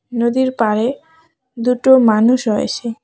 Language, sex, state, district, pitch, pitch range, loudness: Bengali, female, West Bengal, Cooch Behar, 250 Hz, 230-260 Hz, -15 LUFS